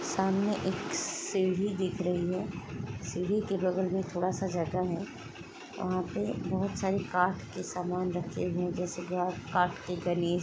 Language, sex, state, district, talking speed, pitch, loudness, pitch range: Hindi, female, Chhattisgarh, Sukma, 175 wpm, 180 Hz, -32 LUFS, 175-190 Hz